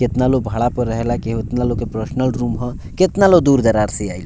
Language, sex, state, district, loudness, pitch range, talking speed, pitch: Bhojpuri, male, Bihar, Muzaffarpur, -17 LUFS, 115-130 Hz, 240 wpm, 120 Hz